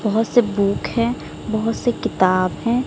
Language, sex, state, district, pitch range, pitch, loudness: Hindi, female, Odisha, Sambalpur, 200-235 Hz, 225 Hz, -20 LUFS